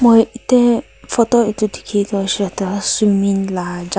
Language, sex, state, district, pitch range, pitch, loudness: Nagamese, female, Nagaland, Kohima, 195-235 Hz, 205 Hz, -16 LUFS